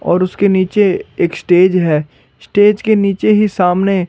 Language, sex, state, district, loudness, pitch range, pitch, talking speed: Hindi, male, Chandigarh, Chandigarh, -13 LUFS, 175-200 Hz, 185 Hz, 160 wpm